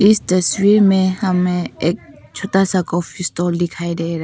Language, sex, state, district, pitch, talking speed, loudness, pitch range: Hindi, female, Arunachal Pradesh, Papum Pare, 180 Hz, 185 wpm, -17 LUFS, 175-195 Hz